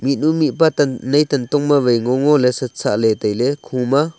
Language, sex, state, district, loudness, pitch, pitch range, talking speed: Wancho, male, Arunachal Pradesh, Longding, -17 LUFS, 135 Hz, 125-145 Hz, 160 wpm